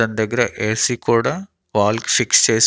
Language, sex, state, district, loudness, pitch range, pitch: Telugu, male, Andhra Pradesh, Annamaya, -18 LUFS, 110-120 Hz, 115 Hz